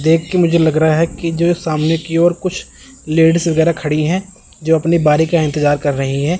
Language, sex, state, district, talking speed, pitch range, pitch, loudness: Hindi, male, Chandigarh, Chandigarh, 225 wpm, 155-170 Hz, 165 Hz, -15 LUFS